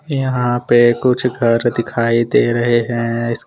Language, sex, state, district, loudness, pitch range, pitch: Hindi, male, Jharkhand, Deoghar, -15 LUFS, 115-125 Hz, 120 Hz